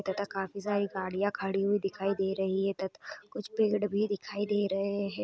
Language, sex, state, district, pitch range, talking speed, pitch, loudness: Hindi, female, Bihar, Purnia, 195-205 Hz, 205 wpm, 200 Hz, -32 LUFS